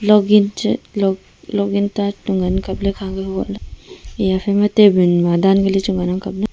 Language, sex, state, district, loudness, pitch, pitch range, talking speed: Wancho, female, Arunachal Pradesh, Longding, -17 LUFS, 195 Hz, 185-205 Hz, 145 wpm